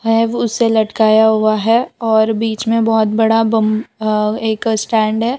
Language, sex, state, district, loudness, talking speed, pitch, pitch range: Hindi, female, Gujarat, Valsad, -14 LUFS, 165 wpm, 225 Hz, 215-225 Hz